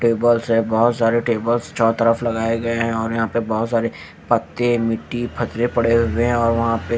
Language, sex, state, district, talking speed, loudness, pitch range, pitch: Hindi, male, Haryana, Jhajjar, 200 wpm, -19 LUFS, 115-120 Hz, 115 Hz